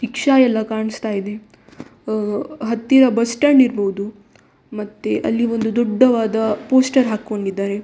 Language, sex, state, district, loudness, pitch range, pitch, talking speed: Kannada, female, Karnataka, Dakshina Kannada, -17 LUFS, 210-245 Hz, 220 Hz, 115 wpm